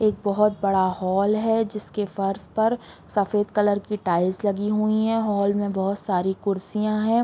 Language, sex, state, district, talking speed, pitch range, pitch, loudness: Hindi, female, Chhattisgarh, Bilaspur, 175 wpm, 195-215 Hz, 205 Hz, -23 LUFS